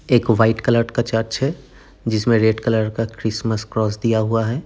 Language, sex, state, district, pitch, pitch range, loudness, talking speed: Hindi, male, Uttar Pradesh, Jyotiba Phule Nagar, 115 Hz, 110-115 Hz, -19 LUFS, 195 wpm